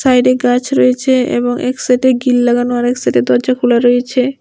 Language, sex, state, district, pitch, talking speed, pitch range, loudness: Bengali, female, Tripura, West Tripura, 250 Hz, 190 wpm, 245-255 Hz, -13 LUFS